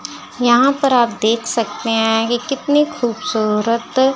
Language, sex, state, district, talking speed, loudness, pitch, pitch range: Hindi, female, Chandigarh, Chandigarh, 130 wpm, -16 LUFS, 240 Hz, 225-265 Hz